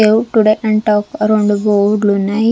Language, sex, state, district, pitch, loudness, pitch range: Telugu, female, Andhra Pradesh, Sri Satya Sai, 215 Hz, -13 LUFS, 205-215 Hz